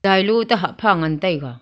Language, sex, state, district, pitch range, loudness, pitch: Wancho, female, Arunachal Pradesh, Longding, 160-210 Hz, -18 LUFS, 190 Hz